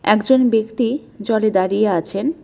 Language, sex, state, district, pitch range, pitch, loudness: Bengali, female, West Bengal, Alipurduar, 210-255 Hz, 220 Hz, -17 LUFS